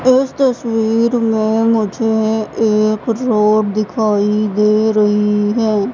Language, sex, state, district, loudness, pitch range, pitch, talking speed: Hindi, female, Madhya Pradesh, Katni, -15 LUFS, 210-230 Hz, 220 Hz, 100 wpm